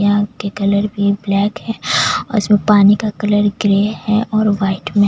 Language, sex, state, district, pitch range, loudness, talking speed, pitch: Hindi, female, Chhattisgarh, Jashpur, 200-210 Hz, -15 LUFS, 165 wpm, 205 Hz